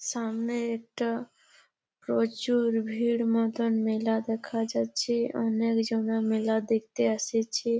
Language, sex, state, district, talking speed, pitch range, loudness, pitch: Bengali, female, West Bengal, Jalpaiguri, 100 wpm, 225-235 Hz, -28 LUFS, 225 Hz